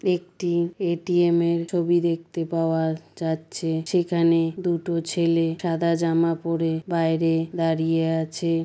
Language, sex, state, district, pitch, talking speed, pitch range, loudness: Bengali, female, West Bengal, Dakshin Dinajpur, 165 Hz, 110 wpm, 165-170 Hz, -23 LUFS